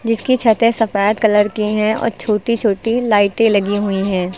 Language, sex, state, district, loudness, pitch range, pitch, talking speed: Hindi, female, Uttar Pradesh, Lucknow, -15 LUFS, 205-230 Hz, 215 Hz, 180 wpm